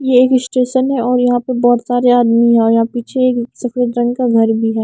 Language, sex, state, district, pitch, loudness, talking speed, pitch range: Hindi, female, Maharashtra, Mumbai Suburban, 245 Hz, -13 LUFS, 260 wpm, 235-250 Hz